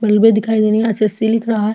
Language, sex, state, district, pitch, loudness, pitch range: Hindi, female, Chhattisgarh, Jashpur, 220 Hz, -15 LUFS, 215-225 Hz